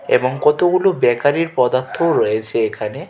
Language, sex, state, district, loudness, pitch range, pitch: Bengali, male, Tripura, West Tripura, -17 LUFS, 120-165 Hz, 130 Hz